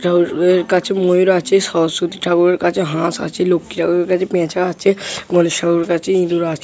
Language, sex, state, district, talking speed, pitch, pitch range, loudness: Bengali, male, West Bengal, Jhargram, 180 wpm, 175 Hz, 170-185 Hz, -16 LUFS